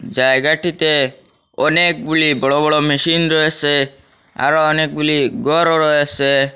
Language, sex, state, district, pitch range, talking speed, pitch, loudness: Bengali, male, Assam, Hailakandi, 140-160 Hz, 90 wpm, 150 Hz, -14 LUFS